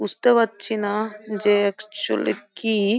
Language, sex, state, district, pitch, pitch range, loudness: Bengali, female, West Bengal, Jhargram, 210 Hz, 200-220 Hz, -20 LUFS